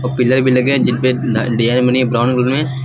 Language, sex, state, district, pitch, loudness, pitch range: Hindi, male, Uttar Pradesh, Lucknow, 125 Hz, -14 LUFS, 125-130 Hz